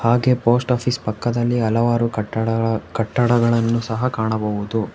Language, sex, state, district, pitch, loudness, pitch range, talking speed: Kannada, male, Karnataka, Bangalore, 115 Hz, -19 LUFS, 110-120 Hz, 110 wpm